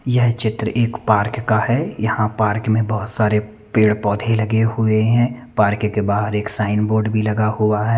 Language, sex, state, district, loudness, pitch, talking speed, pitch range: Hindi, male, Chandigarh, Chandigarh, -18 LUFS, 110 Hz, 190 wpm, 105-115 Hz